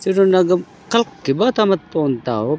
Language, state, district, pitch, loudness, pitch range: Gondi, Chhattisgarh, Sukma, 185 Hz, -17 LUFS, 150-200 Hz